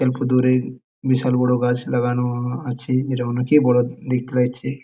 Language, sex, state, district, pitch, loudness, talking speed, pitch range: Bengali, male, West Bengal, Jalpaiguri, 125 Hz, -20 LUFS, 135 wpm, 125-130 Hz